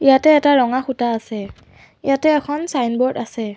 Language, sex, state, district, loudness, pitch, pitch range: Assamese, female, Assam, Sonitpur, -17 LUFS, 260 Hz, 235-290 Hz